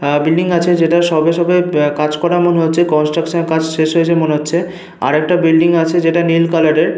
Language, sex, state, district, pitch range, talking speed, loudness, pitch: Bengali, male, Jharkhand, Sahebganj, 155-170 Hz, 205 wpm, -13 LUFS, 165 Hz